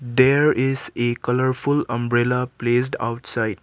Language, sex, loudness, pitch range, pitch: English, male, -20 LUFS, 120-130 Hz, 125 Hz